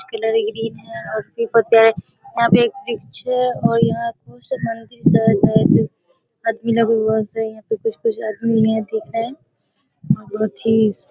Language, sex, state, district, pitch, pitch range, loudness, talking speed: Hindi, female, Bihar, Darbhanga, 225 Hz, 220-235 Hz, -18 LUFS, 180 wpm